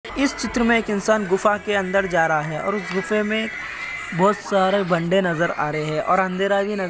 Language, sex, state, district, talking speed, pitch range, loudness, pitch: Hindi, male, Uttar Pradesh, Hamirpur, 235 wpm, 180-210 Hz, -21 LUFS, 195 Hz